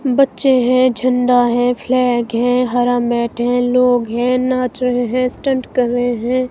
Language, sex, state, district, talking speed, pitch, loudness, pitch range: Hindi, female, Himachal Pradesh, Shimla, 165 wpm, 250 Hz, -15 LUFS, 245-255 Hz